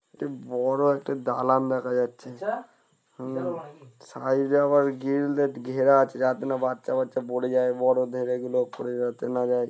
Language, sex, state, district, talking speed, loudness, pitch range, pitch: Bengali, male, West Bengal, Purulia, 165 wpm, -26 LUFS, 125-135 Hz, 130 Hz